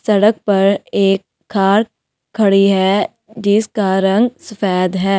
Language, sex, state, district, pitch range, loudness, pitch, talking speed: Hindi, female, Delhi, New Delhi, 195-215 Hz, -15 LUFS, 200 Hz, 115 wpm